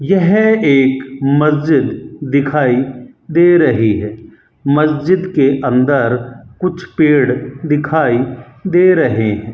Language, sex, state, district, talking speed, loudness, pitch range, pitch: Hindi, male, Rajasthan, Bikaner, 100 wpm, -13 LUFS, 125-160 Hz, 140 Hz